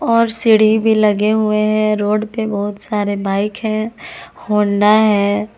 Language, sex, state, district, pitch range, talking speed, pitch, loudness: Hindi, female, Jharkhand, Palamu, 205-220 Hz, 150 wpm, 215 Hz, -15 LUFS